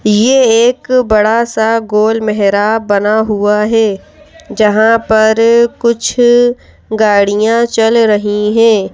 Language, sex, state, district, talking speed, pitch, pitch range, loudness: Hindi, female, Madhya Pradesh, Bhopal, 105 wpm, 220 Hz, 210-235 Hz, -10 LUFS